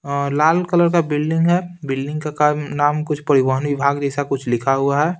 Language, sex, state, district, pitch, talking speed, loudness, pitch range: Hindi, male, Bihar, Patna, 145 Hz, 205 wpm, -18 LUFS, 140-155 Hz